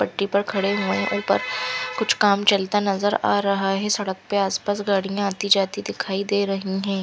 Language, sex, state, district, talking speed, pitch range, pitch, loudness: Hindi, female, Punjab, Fazilka, 195 wpm, 195-205 Hz, 200 Hz, -22 LUFS